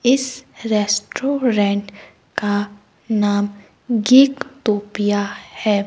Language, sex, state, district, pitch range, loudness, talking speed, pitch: Hindi, female, Himachal Pradesh, Shimla, 205-245 Hz, -19 LUFS, 70 wpm, 210 Hz